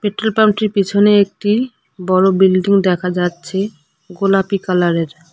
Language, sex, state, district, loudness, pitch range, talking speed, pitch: Bengali, female, West Bengal, Cooch Behar, -15 LUFS, 180-205 Hz, 100 wpm, 195 Hz